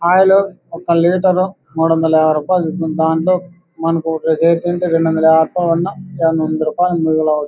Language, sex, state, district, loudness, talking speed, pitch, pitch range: Telugu, male, Andhra Pradesh, Anantapur, -15 LUFS, 55 wpm, 165 Hz, 160-180 Hz